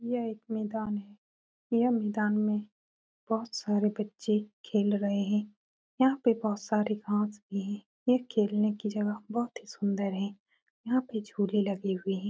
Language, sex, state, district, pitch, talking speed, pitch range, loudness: Hindi, female, Uttar Pradesh, Muzaffarnagar, 210 Hz, 160 wpm, 205-225 Hz, -31 LUFS